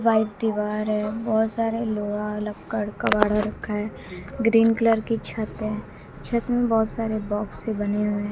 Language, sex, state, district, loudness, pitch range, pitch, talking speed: Hindi, female, Haryana, Jhajjar, -24 LUFS, 210-225 Hz, 215 Hz, 160 wpm